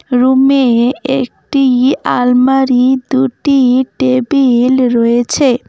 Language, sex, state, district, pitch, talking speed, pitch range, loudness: Bengali, female, West Bengal, Cooch Behar, 255 Hz, 65 wpm, 250-270 Hz, -11 LUFS